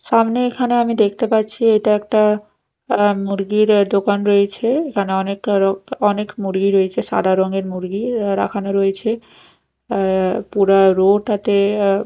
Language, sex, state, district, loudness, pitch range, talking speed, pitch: Bengali, female, Odisha, Nuapada, -17 LUFS, 195-220 Hz, 130 wpm, 205 Hz